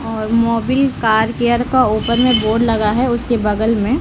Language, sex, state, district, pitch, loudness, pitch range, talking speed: Hindi, female, Bihar, Lakhisarai, 230 Hz, -15 LUFS, 220-245 Hz, 210 wpm